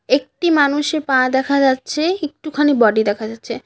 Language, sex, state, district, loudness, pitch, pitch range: Bengali, female, West Bengal, Cooch Behar, -17 LUFS, 280 Hz, 255-305 Hz